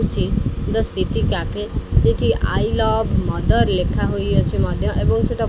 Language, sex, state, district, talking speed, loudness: Odia, male, Odisha, Khordha, 155 wpm, -19 LUFS